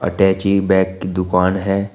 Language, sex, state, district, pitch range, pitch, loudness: Hindi, male, Uttar Pradesh, Shamli, 90-100 Hz, 95 Hz, -17 LUFS